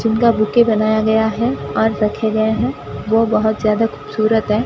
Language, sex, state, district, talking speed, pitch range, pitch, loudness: Hindi, female, Rajasthan, Bikaner, 180 wpm, 215-225 Hz, 220 Hz, -16 LUFS